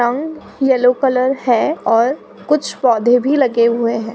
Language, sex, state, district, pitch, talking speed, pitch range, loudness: Hindi, female, Uttar Pradesh, Budaun, 255 Hz, 160 wpm, 235-275 Hz, -15 LUFS